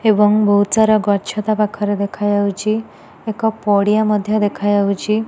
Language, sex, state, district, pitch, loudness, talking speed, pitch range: Odia, female, Odisha, Nuapada, 210 Hz, -16 LUFS, 125 wpm, 205-215 Hz